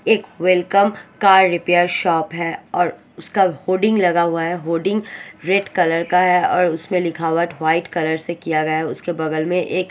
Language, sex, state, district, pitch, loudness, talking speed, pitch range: Hindi, female, Odisha, Sambalpur, 175 Hz, -18 LUFS, 175 wpm, 165-185 Hz